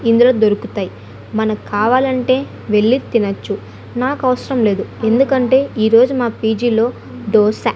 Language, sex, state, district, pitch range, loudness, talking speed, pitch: Telugu, female, Andhra Pradesh, Annamaya, 220-255 Hz, -15 LUFS, 115 wpm, 235 Hz